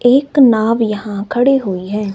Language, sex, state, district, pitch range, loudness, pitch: Hindi, male, Himachal Pradesh, Shimla, 205-250 Hz, -14 LUFS, 225 Hz